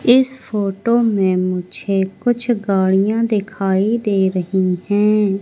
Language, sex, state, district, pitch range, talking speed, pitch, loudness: Hindi, female, Madhya Pradesh, Katni, 190-225 Hz, 110 wpm, 200 Hz, -17 LUFS